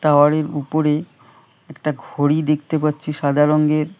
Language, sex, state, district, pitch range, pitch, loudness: Bengali, male, West Bengal, Cooch Behar, 145-155 Hz, 150 Hz, -19 LUFS